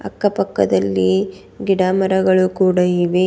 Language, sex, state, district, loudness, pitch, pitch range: Kannada, female, Karnataka, Bidar, -16 LUFS, 185 Hz, 155-190 Hz